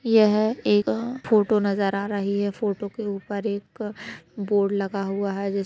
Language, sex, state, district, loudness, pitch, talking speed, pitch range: Hindi, female, Uttar Pradesh, Deoria, -24 LUFS, 200 Hz, 180 wpm, 200-215 Hz